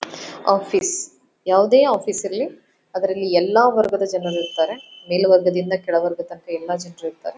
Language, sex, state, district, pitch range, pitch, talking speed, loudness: Kannada, female, Karnataka, Dharwad, 175-210 Hz, 185 Hz, 115 wpm, -19 LUFS